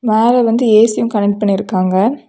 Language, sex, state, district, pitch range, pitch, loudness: Tamil, female, Tamil Nadu, Kanyakumari, 205-235 Hz, 215 Hz, -13 LUFS